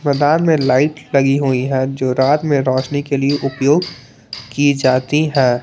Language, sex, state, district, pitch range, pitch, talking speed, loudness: Hindi, male, Jharkhand, Palamu, 130-145 Hz, 140 Hz, 170 wpm, -15 LUFS